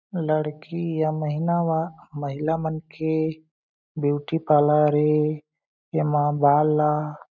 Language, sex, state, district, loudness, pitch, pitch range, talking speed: Chhattisgarhi, male, Chhattisgarh, Jashpur, -23 LUFS, 155 Hz, 150-160 Hz, 105 wpm